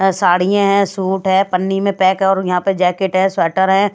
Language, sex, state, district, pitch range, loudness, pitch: Hindi, female, Bihar, Katihar, 185-195 Hz, -15 LUFS, 190 Hz